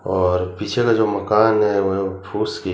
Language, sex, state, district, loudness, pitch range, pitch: Hindi, male, Chhattisgarh, Bilaspur, -19 LUFS, 95-105 Hz, 100 Hz